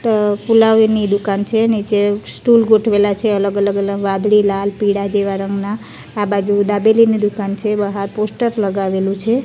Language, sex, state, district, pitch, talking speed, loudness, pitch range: Gujarati, female, Gujarat, Gandhinagar, 205 Hz, 165 wpm, -15 LUFS, 200-220 Hz